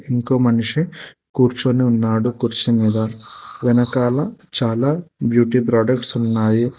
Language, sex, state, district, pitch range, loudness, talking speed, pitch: Telugu, male, Telangana, Hyderabad, 115-130 Hz, -17 LUFS, 95 wpm, 120 Hz